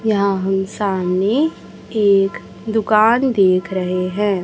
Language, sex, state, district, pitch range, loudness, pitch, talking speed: Hindi, male, Chhattisgarh, Raipur, 190-215 Hz, -17 LUFS, 200 Hz, 110 wpm